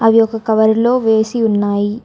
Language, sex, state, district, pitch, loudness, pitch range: Telugu, female, Telangana, Hyderabad, 220 Hz, -14 LUFS, 220-225 Hz